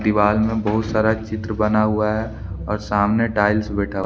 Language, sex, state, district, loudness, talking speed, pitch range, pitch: Hindi, male, Jharkhand, Deoghar, -20 LUFS, 180 wpm, 105-110 Hz, 105 Hz